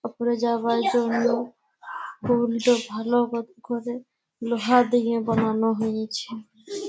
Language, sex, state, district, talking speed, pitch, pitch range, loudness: Bengali, female, West Bengal, Malda, 115 wpm, 235 Hz, 225-240 Hz, -24 LUFS